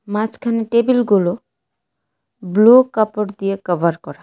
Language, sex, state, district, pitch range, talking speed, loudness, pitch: Bengali, female, Tripura, West Tripura, 195-230 Hz, 100 wpm, -16 LUFS, 215 Hz